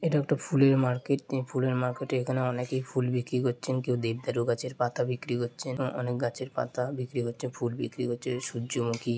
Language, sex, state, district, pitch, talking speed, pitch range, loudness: Bengali, male, West Bengal, Jalpaiguri, 125 Hz, 185 wpm, 120-130 Hz, -30 LUFS